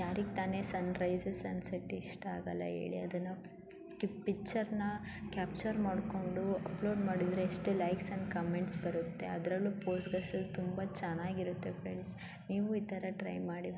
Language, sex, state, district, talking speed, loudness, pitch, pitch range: Kannada, female, Karnataka, Dharwad, 105 wpm, -38 LUFS, 185 Hz, 180-195 Hz